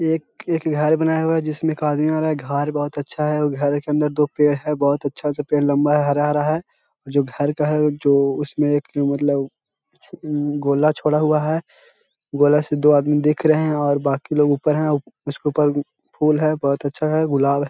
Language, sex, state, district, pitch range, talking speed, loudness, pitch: Hindi, male, Bihar, Jahanabad, 145-155 Hz, 210 wpm, -19 LUFS, 150 Hz